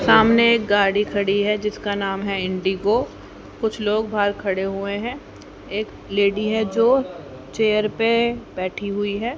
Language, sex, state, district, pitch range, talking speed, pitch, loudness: Hindi, female, Haryana, Jhajjar, 195-220 Hz, 155 wpm, 205 Hz, -21 LUFS